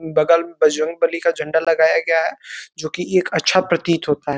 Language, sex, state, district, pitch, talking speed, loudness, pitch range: Hindi, male, Uttar Pradesh, Deoria, 165 Hz, 205 wpm, -18 LUFS, 155-170 Hz